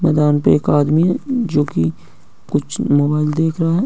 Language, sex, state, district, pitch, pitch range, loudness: Hindi, male, Uttar Pradesh, Hamirpur, 150 Hz, 145-165 Hz, -16 LUFS